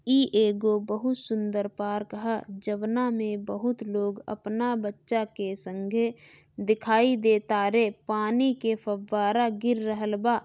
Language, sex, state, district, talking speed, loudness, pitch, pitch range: Bhojpuri, female, Bihar, Gopalganj, 130 wpm, -27 LUFS, 215 Hz, 210-230 Hz